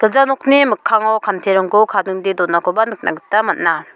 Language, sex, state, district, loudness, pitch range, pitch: Garo, female, Meghalaya, South Garo Hills, -15 LUFS, 190-225 Hz, 215 Hz